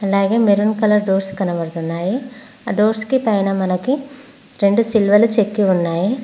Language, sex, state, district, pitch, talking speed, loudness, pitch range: Telugu, female, Telangana, Mahabubabad, 210 Hz, 125 wpm, -17 LUFS, 195-230 Hz